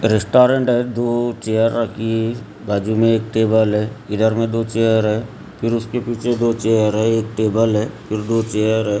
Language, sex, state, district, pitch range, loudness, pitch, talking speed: Hindi, male, Maharashtra, Gondia, 110-115 Hz, -18 LUFS, 110 Hz, 185 wpm